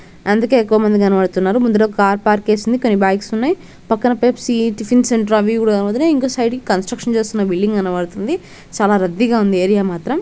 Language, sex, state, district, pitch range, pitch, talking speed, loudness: Telugu, female, Andhra Pradesh, Krishna, 200-240 Hz, 220 Hz, 180 wpm, -15 LUFS